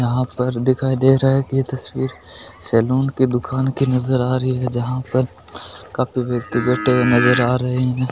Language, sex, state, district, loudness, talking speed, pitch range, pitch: Marwari, male, Rajasthan, Nagaur, -18 LUFS, 200 wpm, 120-130 Hz, 125 Hz